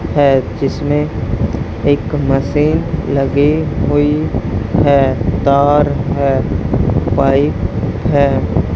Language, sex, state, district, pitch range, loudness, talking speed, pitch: Hindi, male, Haryana, Charkhi Dadri, 125-145 Hz, -14 LUFS, 75 wpm, 140 Hz